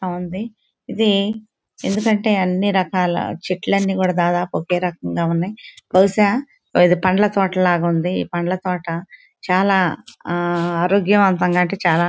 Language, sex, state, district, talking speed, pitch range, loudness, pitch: Telugu, female, Andhra Pradesh, Guntur, 125 wpm, 175-200 Hz, -18 LUFS, 185 Hz